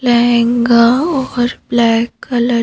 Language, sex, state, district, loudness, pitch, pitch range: Hindi, female, Madhya Pradesh, Bhopal, -13 LUFS, 240 Hz, 235-245 Hz